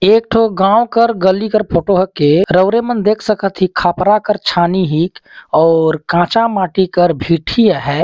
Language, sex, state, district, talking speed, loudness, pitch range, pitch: Chhattisgarhi, male, Chhattisgarh, Jashpur, 180 wpm, -13 LUFS, 175-215 Hz, 190 Hz